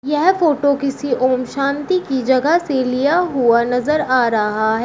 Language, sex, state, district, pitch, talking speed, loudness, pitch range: Hindi, female, Uttar Pradesh, Shamli, 270 Hz, 175 wpm, -16 LUFS, 250-300 Hz